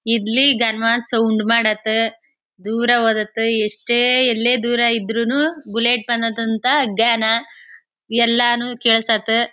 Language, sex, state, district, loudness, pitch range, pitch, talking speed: Kannada, female, Karnataka, Chamarajanagar, -15 LUFS, 225-240 Hz, 230 Hz, 95 wpm